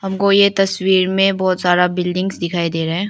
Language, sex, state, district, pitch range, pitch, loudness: Hindi, female, Arunachal Pradesh, Lower Dibang Valley, 180-195 Hz, 185 Hz, -16 LUFS